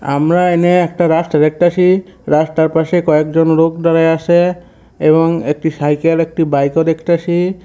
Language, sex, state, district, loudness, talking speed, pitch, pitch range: Bengali, male, West Bengal, North 24 Parganas, -13 LUFS, 150 wpm, 165 Hz, 160-175 Hz